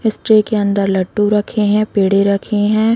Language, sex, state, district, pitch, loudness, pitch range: Hindi, female, Uttarakhand, Uttarkashi, 210 Hz, -14 LUFS, 200-215 Hz